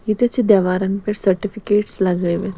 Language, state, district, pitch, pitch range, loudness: Kashmiri, Punjab, Kapurthala, 205 Hz, 190-215 Hz, -18 LUFS